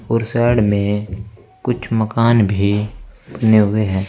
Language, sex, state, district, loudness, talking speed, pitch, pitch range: Hindi, male, Uttar Pradesh, Saharanpur, -16 LUFS, 130 wpm, 110 Hz, 105-115 Hz